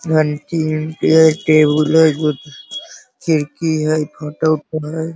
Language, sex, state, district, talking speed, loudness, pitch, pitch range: Hindi, male, Bihar, Sitamarhi, 95 wpm, -16 LUFS, 155 Hz, 150-160 Hz